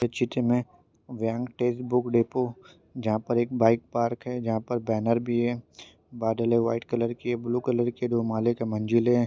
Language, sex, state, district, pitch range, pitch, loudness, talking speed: Hindi, male, Maharashtra, Chandrapur, 115-120 Hz, 120 Hz, -27 LUFS, 195 wpm